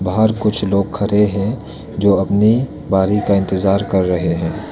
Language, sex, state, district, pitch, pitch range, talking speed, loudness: Hindi, male, Arunachal Pradesh, Lower Dibang Valley, 100 Hz, 95-105 Hz, 165 wpm, -16 LUFS